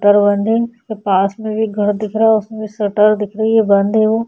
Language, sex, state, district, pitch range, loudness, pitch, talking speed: Hindi, female, Uttar Pradesh, Budaun, 205-220 Hz, -15 LUFS, 215 Hz, 225 wpm